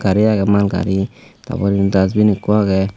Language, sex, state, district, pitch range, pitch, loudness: Chakma, male, Tripura, Unakoti, 95-105 Hz, 100 Hz, -16 LUFS